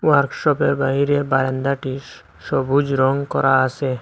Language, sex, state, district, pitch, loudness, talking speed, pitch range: Bengali, male, Assam, Hailakandi, 135 Hz, -19 LUFS, 105 wpm, 130-140 Hz